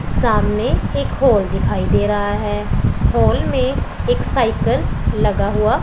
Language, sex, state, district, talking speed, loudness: Hindi, female, Punjab, Pathankot, 135 wpm, -17 LUFS